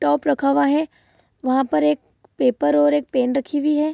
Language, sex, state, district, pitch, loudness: Hindi, female, Bihar, Saharsa, 260 Hz, -20 LUFS